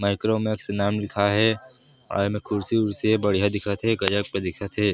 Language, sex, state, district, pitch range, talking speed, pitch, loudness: Chhattisgarhi, male, Chhattisgarh, Sarguja, 100-110 Hz, 180 wpm, 105 Hz, -24 LUFS